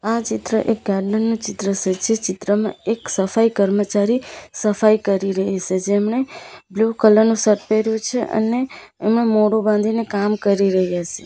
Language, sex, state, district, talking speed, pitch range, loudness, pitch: Gujarati, female, Gujarat, Valsad, 165 wpm, 200-225 Hz, -19 LUFS, 215 Hz